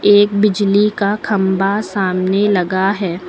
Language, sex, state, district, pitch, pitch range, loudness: Hindi, female, Uttar Pradesh, Lucknow, 200 Hz, 190-205 Hz, -15 LUFS